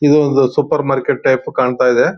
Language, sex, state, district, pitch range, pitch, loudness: Kannada, male, Karnataka, Shimoga, 125-150 Hz, 135 Hz, -14 LUFS